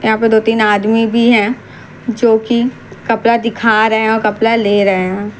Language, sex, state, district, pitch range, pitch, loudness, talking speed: Hindi, female, Bihar, Katihar, 210-230 Hz, 220 Hz, -12 LUFS, 200 wpm